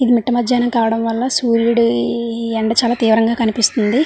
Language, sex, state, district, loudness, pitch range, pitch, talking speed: Telugu, female, Andhra Pradesh, Visakhapatnam, -16 LUFS, 225-240 Hz, 230 Hz, 135 wpm